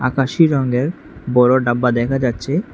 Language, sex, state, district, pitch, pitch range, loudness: Bengali, male, Tripura, West Tripura, 130 Hz, 125-140 Hz, -16 LUFS